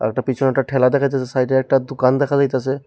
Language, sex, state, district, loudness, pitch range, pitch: Bengali, male, Tripura, Unakoti, -18 LUFS, 130-135 Hz, 130 Hz